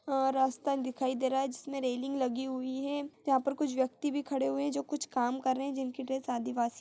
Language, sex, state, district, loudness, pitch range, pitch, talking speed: Hindi, female, Chhattisgarh, Kabirdham, -33 LUFS, 260-275 Hz, 265 Hz, 245 wpm